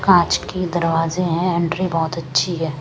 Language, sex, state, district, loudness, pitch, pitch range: Hindi, female, Punjab, Kapurthala, -19 LUFS, 170 Hz, 165-180 Hz